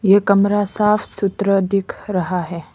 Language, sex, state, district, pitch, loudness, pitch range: Hindi, female, Arunachal Pradesh, Lower Dibang Valley, 200 Hz, -18 LUFS, 185-205 Hz